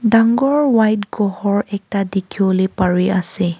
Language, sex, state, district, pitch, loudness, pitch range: Nagamese, female, Nagaland, Kohima, 200 Hz, -17 LUFS, 190-220 Hz